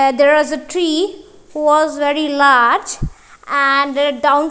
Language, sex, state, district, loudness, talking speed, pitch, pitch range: English, female, Punjab, Kapurthala, -14 LUFS, 175 wpm, 300 Hz, 285-320 Hz